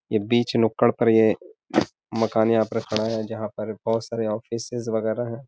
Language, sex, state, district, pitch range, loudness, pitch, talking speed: Hindi, male, Bihar, Gaya, 110-115 Hz, -23 LUFS, 115 Hz, 185 wpm